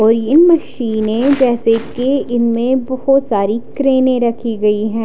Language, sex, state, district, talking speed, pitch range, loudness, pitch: Hindi, female, Odisha, Khordha, 155 wpm, 225-260 Hz, -14 LUFS, 240 Hz